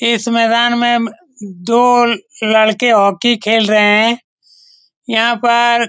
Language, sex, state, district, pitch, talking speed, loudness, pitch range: Hindi, male, Bihar, Saran, 235 Hz, 120 wpm, -12 LUFS, 220-240 Hz